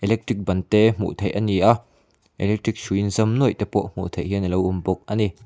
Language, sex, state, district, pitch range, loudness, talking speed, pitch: Mizo, male, Mizoram, Aizawl, 95-110 Hz, -22 LUFS, 250 wpm, 105 Hz